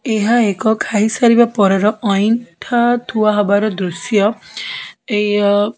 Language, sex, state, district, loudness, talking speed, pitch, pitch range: Odia, female, Odisha, Khordha, -15 LUFS, 125 wpm, 215 Hz, 205-235 Hz